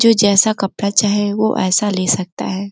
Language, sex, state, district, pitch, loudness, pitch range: Hindi, female, Uttar Pradesh, Gorakhpur, 205 Hz, -15 LUFS, 190-210 Hz